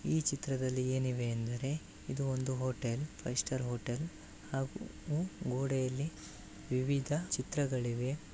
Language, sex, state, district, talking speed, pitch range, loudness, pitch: Kannada, male, Karnataka, Bellary, 95 wpm, 125-145 Hz, -36 LUFS, 130 Hz